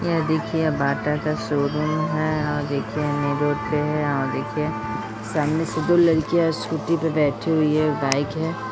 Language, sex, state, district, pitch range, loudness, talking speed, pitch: Bhojpuri, female, Bihar, Saran, 145-160 Hz, -22 LUFS, 170 wpm, 150 Hz